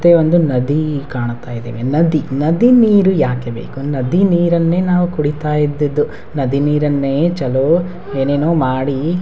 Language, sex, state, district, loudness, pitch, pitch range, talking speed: Kannada, male, Karnataka, Raichur, -15 LUFS, 150 Hz, 135-170 Hz, 130 wpm